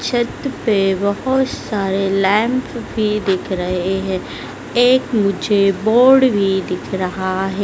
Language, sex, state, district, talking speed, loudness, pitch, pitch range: Hindi, female, Madhya Pradesh, Dhar, 125 wpm, -17 LUFS, 200 Hz, 190-240 Hz